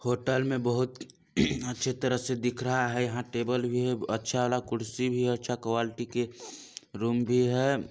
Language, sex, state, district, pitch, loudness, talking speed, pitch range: Hindi, male, Chhattisgarh, Balrampur, 125 Hz, -29 LUFS, 180 wpm, 120-125 Hz